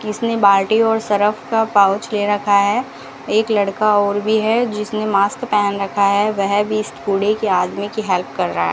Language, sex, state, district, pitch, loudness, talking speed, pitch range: Hindi, female, Rajasthan, Bikaner, 205 Hz, -17 LUFS, 200 wpm, 200-215 Hz